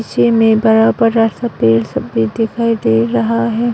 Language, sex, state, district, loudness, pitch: Hindi, female, Arunachal Pradesh, Longding, -13 LUFS, 225 Hz